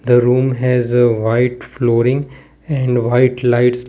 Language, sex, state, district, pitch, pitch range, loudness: English, male, Gujarat, Valsad, 125 Hz, 120-130 Hz, -15 LUFS